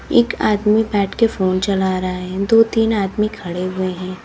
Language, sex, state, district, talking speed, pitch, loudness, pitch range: Hindi, female, Uttar Pradesh, Lalitpur, 185 wpm, 195 Hz, -18 LUFS, 185-215 Hz